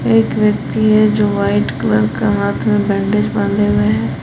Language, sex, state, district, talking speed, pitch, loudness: Hindi, female, Jharkhand, Palamu, 185 wpm, 200 Hz, -15 LUFS